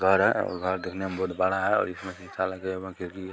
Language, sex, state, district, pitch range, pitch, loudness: Hindi, male, Bihar, Sitamarhi, 90-95 Hz, 95 Hz, -28 LUFS